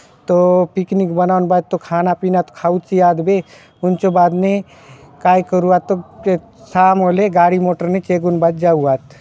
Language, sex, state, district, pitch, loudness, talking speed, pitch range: Halbi, male, Chhattisgarh, Bastar, 180 Hz, -15 LUFS, 175 wpm, 175-185 Hz